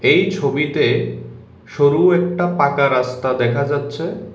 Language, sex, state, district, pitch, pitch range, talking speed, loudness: Bengali, male, Tripura, West Tripura, 140 Hz, 125-170 Hz, 110 wpm, -17 LUFS